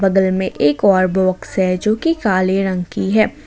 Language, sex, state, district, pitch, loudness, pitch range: Hindi, female, Jharkhand, Ranchi, 190 Hz, -16 LUFS, 185-210 Hz